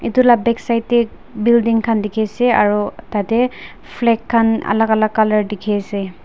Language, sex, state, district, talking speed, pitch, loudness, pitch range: Nagamese, female, Nagaland, Dimapur, 165 wpm, 225 Hz, -16 LUFS, 210-235 Hz